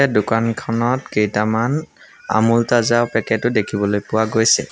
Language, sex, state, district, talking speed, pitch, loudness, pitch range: Assamese, male, Assam, Sonitpur, 125 wpm, 115 Hz, -18 LUFS, 105-120 Hz